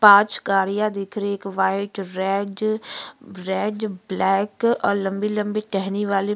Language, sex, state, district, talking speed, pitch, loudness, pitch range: Hindi, female, Uttarakhand, Tehri Garhwal, 150 wpm, 200 Hz, -22 LUFS, 195-210 Hz